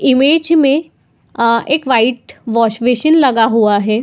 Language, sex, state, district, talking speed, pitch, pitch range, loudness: Hindi, female, Uttar Pradesh, Etah, 135 wpm, 245 Hz, 230-285 Hz, -12 LUFS